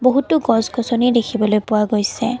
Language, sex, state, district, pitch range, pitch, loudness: Assamese, female, Assam, Kamrup Metropolitan, 215-245 Hz, 235 Hz, -17 LUFS